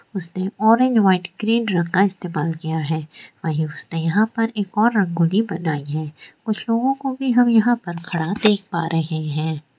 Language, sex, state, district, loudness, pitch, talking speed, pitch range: Hindi, female, West Bengal, Jalpaiguri, -20 LUFS, 185 Hz, 180 wpm, 160-220 Hz